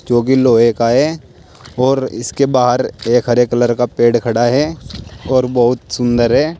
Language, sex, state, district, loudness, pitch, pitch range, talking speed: Hindi, male, Uttar Pradesh, Saharanpur, -14 LUFS, 120 Hz, 120-130 Hz, 175 wpm